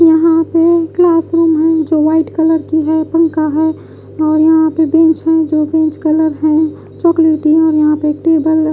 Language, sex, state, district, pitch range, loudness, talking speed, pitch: Hindi, female, Odisha, Khordha, 315-325 Hz, -12 LUFS, 180 wpm, 320 Hz